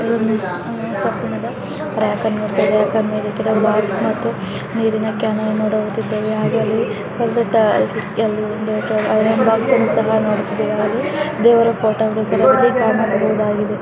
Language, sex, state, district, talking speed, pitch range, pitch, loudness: Kannada, female, Karnataka, Chamarajanagar, 105 wpm, 210-220 Hz, 215 Hz, -17 LUFS